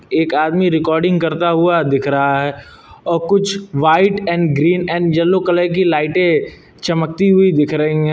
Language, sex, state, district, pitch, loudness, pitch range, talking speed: Hindi, male, Uttar Pradesh, Lucknow, 170 Hz, -15 LUFS, 155-180 Hz, 170 wpm